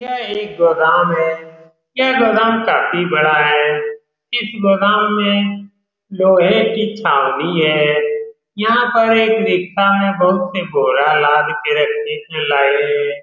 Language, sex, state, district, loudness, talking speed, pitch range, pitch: Hindi, male, Bihar, Saran, -14 LUFS, 115 wpm, 155-215 Hz, 185 Hz